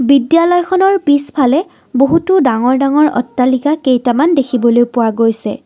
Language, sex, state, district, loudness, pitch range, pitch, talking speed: Assamese, female, Assam, Kamrup Metropolitan, -12 LUFS, 245-315 Hz, 275 Hz, 105 wpm